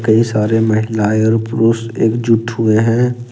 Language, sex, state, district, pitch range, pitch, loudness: Hindi, male, Jharkhand, Ranchi, 110-115 Hz, 115 Hz, -14 LUFS